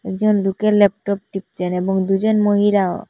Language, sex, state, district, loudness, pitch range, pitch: Bengali, female, Assam, Hailakandi, -18 LUFS, 190-210 Hz, 200 Hz